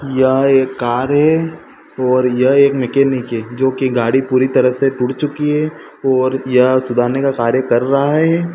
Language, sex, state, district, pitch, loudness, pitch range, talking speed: Hindi, male, Madhya Pradesh, Dhar, 130 Hz, -14 LUFS, 125-140 Hz, 180 wpm